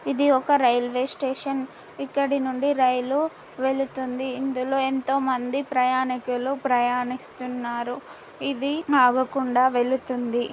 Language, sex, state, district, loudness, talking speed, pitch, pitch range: Telugu, female, Telangana, Karimnagar, -24 LUFS, 85 wpm, 260 Hz, 250-275 Hz